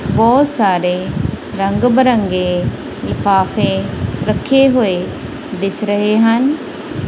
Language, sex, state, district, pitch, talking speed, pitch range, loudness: Punjabi, female, Punjab, Kapurthala, 205 Hz, 85 wpm, 190-245 Hz, -15 LUFS